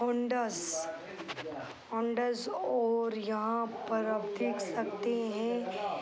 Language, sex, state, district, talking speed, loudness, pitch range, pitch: Hindi, female, Uttar Pradesh, Hamirpur, 90 wpm, -34 LUFS, 215-235 Hz, 225 Hz